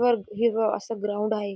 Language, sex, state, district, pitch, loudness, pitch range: Marathi, female, Maharashtra, Dhule, 215 Hz, -26 LUFS, 205-230 Hz